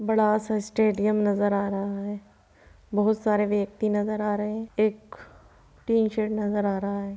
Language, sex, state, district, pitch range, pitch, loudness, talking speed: Hindi, female, Bihar, Sitamarhi, 205-215 Hz, 210 Hz, -25 LUFS, 175 wpm